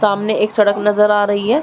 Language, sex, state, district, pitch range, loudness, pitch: Hindi, female, Chhattisgarh, Raigarh, 205-210 Hz, -15 LUFS, 210 Hz